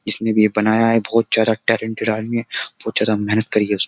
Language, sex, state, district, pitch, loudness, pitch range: Hindi, male, Uttar Pradesh, Jyotiba Phule Nagar, 110 Hz, -18 LUFS, 105-115 Hz